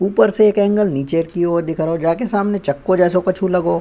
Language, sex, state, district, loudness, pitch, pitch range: Hindi, male, Uttar Pradesh, Budaun, -17 LUFS, 180 Hz, 165-200 Hz